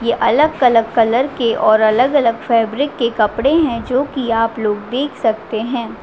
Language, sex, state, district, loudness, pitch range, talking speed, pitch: Hindi, female, Chhattisgarh, Raigarh, -15 LUFS, 225-265 Hz, 180 wpm, 235 Hz